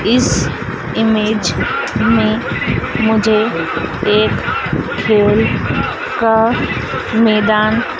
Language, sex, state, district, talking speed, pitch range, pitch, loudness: Hindi, female, Madhya Pradesh, Dhar, 60 wpm, 215-225 Hz, 220 Hz, -15 LUFS